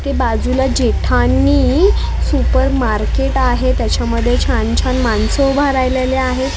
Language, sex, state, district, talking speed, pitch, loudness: Marathi, female, Maharashtra, Mumbai Suburban, 120 wpm, 255 Hz, -15 LUFS